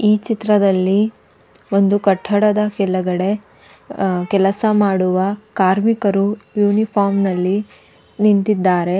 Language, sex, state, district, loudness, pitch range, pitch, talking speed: Kannada, female, Karnataka, Dakshina Kannada, -17 LUFS, 190-210 Hz, 200 Hz, 75 wpm